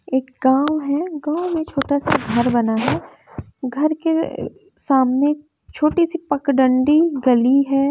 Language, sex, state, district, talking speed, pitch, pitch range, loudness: Hindi, female, Bihar, West Champaran, 145 wpm, 280 Hz, 260-310 Hz, -19 LUFS